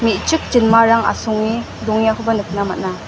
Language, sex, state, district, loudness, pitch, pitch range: Garo, female, Meghalaya, West Garo Hills, -16 LUFS, 220 Hz, 215-230 Hz